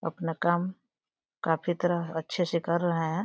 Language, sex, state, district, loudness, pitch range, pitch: Hindi, female, Uttar Pradesh, Deoria, -29 LUFS, 165-175 Hz, 170 Hz